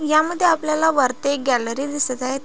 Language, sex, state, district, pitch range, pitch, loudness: Marathi, female, Maharashtra, Pune, 255-310 Hz, 280 Hz, -20 LUFS